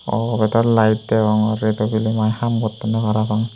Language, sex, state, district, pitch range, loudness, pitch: Chakma, male, Tripura, Unakoti, 110-115 Hz, -18 LUFS, 110 Hz